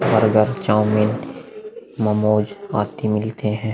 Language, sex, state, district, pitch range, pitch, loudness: Hindi, male, Uttar Pradesh, Muzaffarnagar, 105-130 Hz, 110 Hz, -19 LUFS